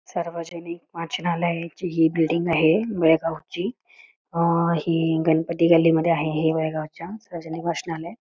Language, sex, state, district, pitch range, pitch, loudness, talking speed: Marathi, female, Karnataka, Belgaum, 160-170 Hz, 170 Hz, -23 LUFS, 100 wpm